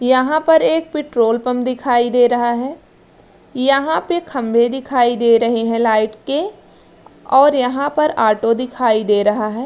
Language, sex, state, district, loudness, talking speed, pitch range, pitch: Hindi, female, Bihar, Araria, -16 LUFS, 160 wpm, 230-280 Hz, 250 Hz